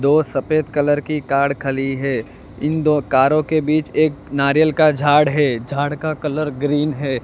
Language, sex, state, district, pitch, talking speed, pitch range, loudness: Hindi, male, Gujarat, Valsad, 145 Hz, 175 wpm, 140-155 Hz, -18 LUFS